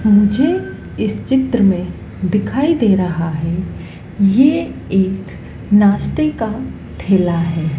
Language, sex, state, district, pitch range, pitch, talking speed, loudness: Hindi, female, Madhya Pradesh, Dhar, 175-240 Hz, 200 Hz, 110 wpm, -16 LUFS